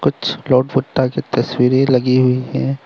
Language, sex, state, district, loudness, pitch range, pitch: Hindi, male, Arunachal Pradesh, Lower Dibang Valley, -16 LUFS, 125-135 Hz, 130 Hz